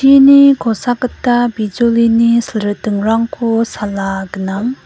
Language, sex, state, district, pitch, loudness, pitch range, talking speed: Garo, female, Meghalaya, West Garo Hills, 230 Hz, -13 LUFS, 210-245 Hz, 60 wpm